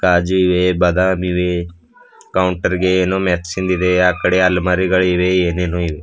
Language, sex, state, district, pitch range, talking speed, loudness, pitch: Kannada, male, Karnataka, Bidar, 90-95 Hz, 140 wpm, -16 LUFS, 90 Hz